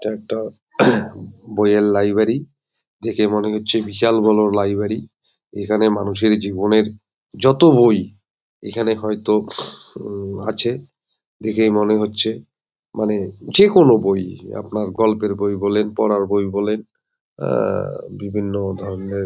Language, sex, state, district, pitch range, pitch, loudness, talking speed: Bengali, male, West Bengal, Jalpaiguri, 100-110 Hz, 105 Hz, -18 LUFS, 120 wpm